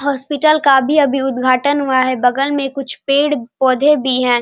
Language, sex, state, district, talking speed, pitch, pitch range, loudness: Hindi, male, Bihar, Saharsa, 190 wpm, 270 Hz, 255-285 Hz, -14 LUFS